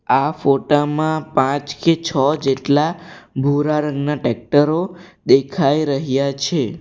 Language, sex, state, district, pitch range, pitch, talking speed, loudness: Gujarati, male, Gujarat, Valsad, 140-155 Hz, 145 Hz, 115 wpm, -18 LUFS